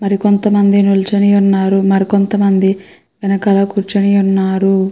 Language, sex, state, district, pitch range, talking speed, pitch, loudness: Telugu, female, Andhra Pradesh, Krishna, 195-200 Hz, 135 wpm, 195 Hz, -12 LUFS